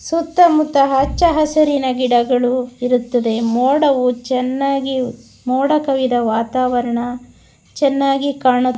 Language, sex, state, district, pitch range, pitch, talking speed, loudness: Kannada, female, Karnataka, Bangalore, 245-280 Hz, 255 Hz, 80 wpm, -16 LUFS